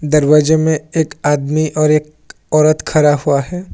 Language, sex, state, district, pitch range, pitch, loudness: Hindi, male, Assam, Kamrup Metropolitan, 150-155 Hz, 150 Hz, -14 LUFS